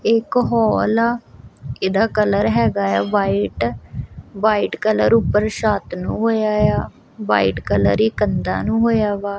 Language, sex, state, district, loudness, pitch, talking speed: Punjabi, female, Punjab, Kapurthala, -18 LUFS, 210 Hz, 130 wpm